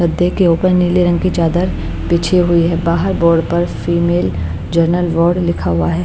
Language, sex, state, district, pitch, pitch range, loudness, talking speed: Hindi, female, Bihar, Patna, 170 Hz, 165-175 Hz, -14 LUFS, 190 wpm